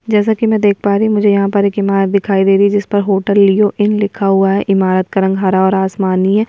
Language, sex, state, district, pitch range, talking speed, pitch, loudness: Hindi, female, Bihar, Kishanganj, 195-205 Hz, 280 wpm, 200 Hz, -13 LUFS